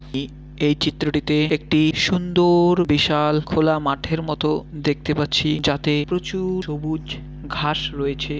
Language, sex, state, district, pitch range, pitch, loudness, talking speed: Bengali, male, West Bengal, Malda, 145-155 Hz, 150 Hz, -20 LUFS, 105 wpm